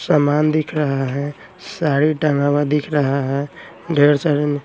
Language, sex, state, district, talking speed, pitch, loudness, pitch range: Hindi, male, Bihar, Patna, 165 wpm, 145 Hz, -18 LUFS, 140-155 Hz